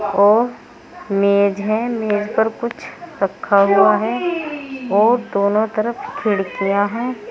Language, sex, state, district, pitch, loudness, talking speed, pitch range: Hindi, female, Uttar Pradesh, Saharanpur, 215 Hz, -18 LUFS, 115 wpm, 200-235 Hz